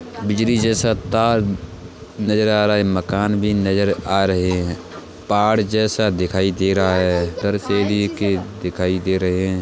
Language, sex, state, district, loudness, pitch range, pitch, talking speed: Hindi, male, Uttar Pradesh, Hamirpur, -19 LUFS, 90-105 Hz, 100 Hz, 175 wpm